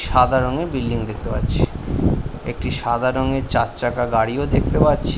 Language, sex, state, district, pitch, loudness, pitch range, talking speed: Bengali, male, West Bengal, Paschim Medinipur, 125 Hz, -20 LUFS, 115-130 Hz, 140 wpm